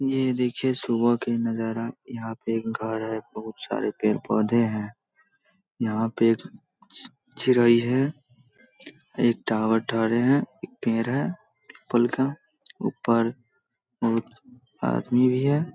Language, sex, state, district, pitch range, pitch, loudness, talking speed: Hindi, male, Bihar, Sitamarhi, 115-130 Hz, 120 Hz, -25 LUFS, 120 wpm